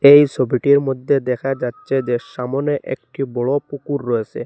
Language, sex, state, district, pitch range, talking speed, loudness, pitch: Bengali, male, Assam, Hailakandi, 125-140 Hz, 150 wpm, -19 LUFS, 135 Hz